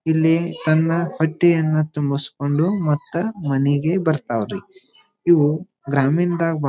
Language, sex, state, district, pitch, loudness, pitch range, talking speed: Kannada, male, Karnataka, Dharwad, 160 Hz, -20 LUFS, 145-170 Hz, 90 wpm